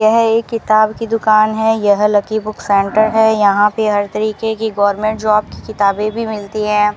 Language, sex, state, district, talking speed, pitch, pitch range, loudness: Hindi, female, Rajasthan, Bikaner, 200 wpm, 215 Hz, 210-220 Hz, -14 LUFS